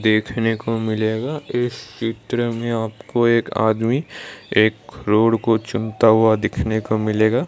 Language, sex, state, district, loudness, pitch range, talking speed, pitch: Hindi, male, Odisha, Malkangiri, -19 LUFS, 110-120 Hz, 135 wpm, 110 Hz